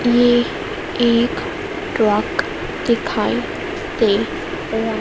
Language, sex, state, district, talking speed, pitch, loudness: Hindi, female, Madhya Pradesh, Dhar, 70 wpm, 240 Hz, -19 LUFS